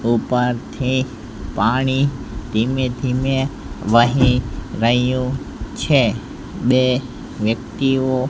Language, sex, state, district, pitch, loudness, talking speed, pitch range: Gujarati, male, Gujarat, Gandhinagar, 125 Hz, -19 LUFS, 65 wpm, 115-130 Hz